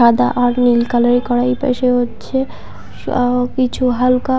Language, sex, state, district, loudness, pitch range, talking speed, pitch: Bengali, female, West Bengal, Paschim Medinipur, -15 LUFS, 245-255 Hz, 150 wpm, 245 Hz